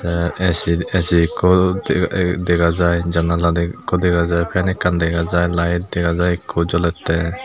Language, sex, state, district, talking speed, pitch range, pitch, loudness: Chakma, male, Tripura, Unakoti, 160 wpm, 85-90 Hz, 85 Hz, -18 LUFS